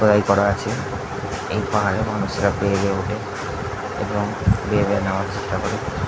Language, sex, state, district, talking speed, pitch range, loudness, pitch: Bengali, male, West Bengal, Jhargram, 150 wpm, 100-105 Hz, -22 LUFS, 100 Hz